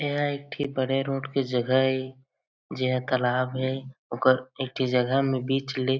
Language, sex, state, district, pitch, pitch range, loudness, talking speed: Chhattisgarhi, male, Chhattisgarh, Jashpur, 130 Hz, 130-135 Hz, -26 LUFS, 200 wpm